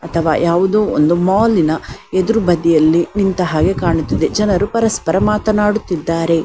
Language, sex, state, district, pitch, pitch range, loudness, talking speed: Kannada, female, Karnataka, Dakshina Kannada, 175 Hz, 165-210 Hz, -15 LUFS, 120 wpm